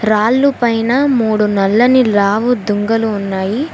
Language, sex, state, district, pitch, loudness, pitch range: Telugu, female, Telangana, Hyderabad, 220 Hz, -13 LUFS, 205-245 Hz